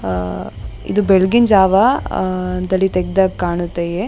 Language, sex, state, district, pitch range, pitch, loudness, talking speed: Kannada, female, Karnataka, Dakshina Kannada, 175-195 Hz, 185 Hz, -16 LUFS, 130 wpm